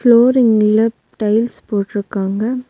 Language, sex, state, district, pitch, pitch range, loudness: Tamil, female, Tamil Nadu, Nilgiris, 220 Hz, 210-240 Hz, -15 LUFS